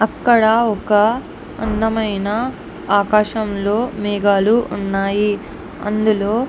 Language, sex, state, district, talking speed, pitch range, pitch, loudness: Telugu, female, Andhra Pradesh, Anantapur, 75 wpm, 205-225 Hz, 215 Hz, -17 LUFS